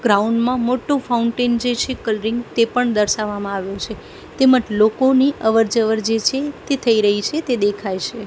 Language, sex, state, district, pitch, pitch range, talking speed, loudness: Gujarati, female, Gujarat, Gandhinagar, 230 Hz, 215-255 Hz, 180 wpm, -18 LUFS